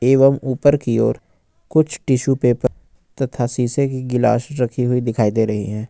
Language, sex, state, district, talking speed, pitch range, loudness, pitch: Hindi, male, Jharkhand, Ranchi, 170 wpm, 115-135 Hz, -18 LUFS, 125 Hz